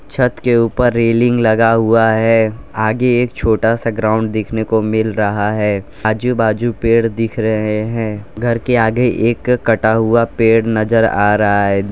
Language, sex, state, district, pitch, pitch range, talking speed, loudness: Hindi, male, Gujarat, Valsad, 115 Hz, 110-115 Hz, 170 wpm, -14 LUFS